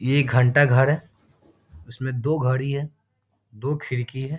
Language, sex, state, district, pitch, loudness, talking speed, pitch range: Hindi, male, Bihar, Muzaffarpur, 130 Hz, -22 LUFS, 165 wpm, 125-145 Hz